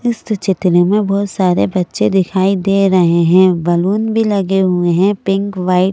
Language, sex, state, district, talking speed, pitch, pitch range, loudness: Hindi, female, Madhya Pradesh, Bhopal, 180 wpm, 190 Hz, 180-200 Hz, -13 LUFS